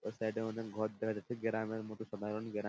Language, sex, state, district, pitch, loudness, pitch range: Bengali, male, West Bengal, Purulia, 110 Hz, -40 LUFS, 105-110 Hz